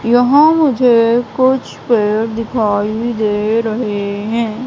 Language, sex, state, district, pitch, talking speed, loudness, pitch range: Hindi, female, Madhya Pradesh, Katni, 230 Hz, 105 wpm, -14 LUFS, 215-245 Hz